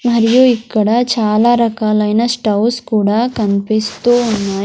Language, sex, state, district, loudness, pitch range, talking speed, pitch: Telugu, female, Andhra Pradesh, Sri Satya Sai, -13 LUFS, 215-240 Hz, 105 wpm, 225 Hz